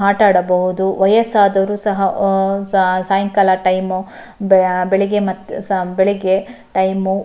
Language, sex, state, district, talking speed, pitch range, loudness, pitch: Kannada, female, Karnataka, Shimoga, 110 wpm, 190-200 Hz, -15 LUFS, 195 Hz